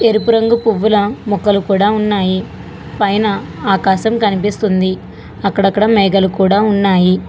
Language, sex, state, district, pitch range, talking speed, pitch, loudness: Telugu, female, Telangana, Hyderabad, 195-215 Hz, 105 wpm, 200 Hz, -14 LUFS